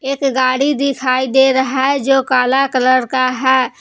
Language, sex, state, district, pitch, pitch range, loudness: Hindi, female, Jharkhand, Palamu, 265 Hz, 255-270 Hz, -14 LUFS